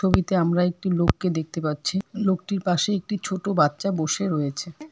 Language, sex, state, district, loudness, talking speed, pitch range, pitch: Bengali, female, West Bengal, Alipurduar, -24 LUFS, 160 wpm, 160-195 Hz, 180 Hz